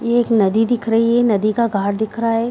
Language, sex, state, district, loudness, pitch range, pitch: Hindi, female, Bihar, Darbhanga, -17 LUFS, 215-235 Hz, 230 Hz